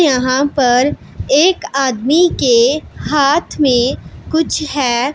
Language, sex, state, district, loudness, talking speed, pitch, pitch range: Hindi, female, Punjab, Pathankot, -14 LUFS, 105 wpm, 275 Hz, 255-320 Hz